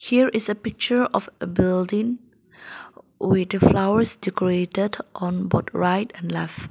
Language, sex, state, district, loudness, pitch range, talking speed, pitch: English, female, Nagaland, Dimapur, -22 LUFS, 180-225 Hz, 135 wpm, 195 Hz